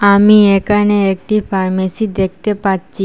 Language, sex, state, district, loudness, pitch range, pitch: Bengali, female, Assam, Hailakandi, -13 LUFS, 190-210 Hz, 200 Hz